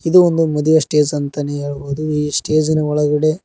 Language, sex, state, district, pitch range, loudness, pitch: Kannada, male, Karnataka, Koppal, 145-155 Hz, -16 LUFS, 150 Hz